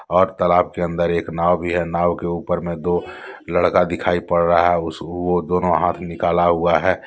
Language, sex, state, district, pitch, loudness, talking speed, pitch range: Hindi, male, Jharkhand, Deoghar, 85 Hz, -19 LUFS, 210 wpm, 85-90 Hz